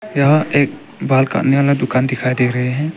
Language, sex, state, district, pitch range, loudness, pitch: Hindi, male, Arunachal Pradesh, Papum Pare, 125-145 Hz, -16 LUFS, 135 Hz